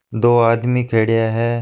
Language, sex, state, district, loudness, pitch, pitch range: Marwari, male, Rajasthan, Nagaur, -16 LUFS, 115 Hz, 115-120 Hz